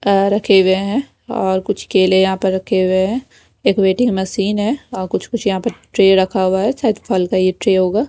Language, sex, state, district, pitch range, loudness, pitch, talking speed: Hindi, female, Bihar, Kaimur, 190-215 Hz, -16 LUFS, 195 Hz, 220 wpm